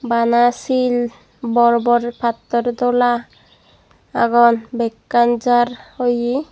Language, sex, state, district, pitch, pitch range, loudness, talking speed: Chakma, female, Tripura, Dhalai, 240 Hz, 235-245 Hz, -17 LUFS, 90 wpm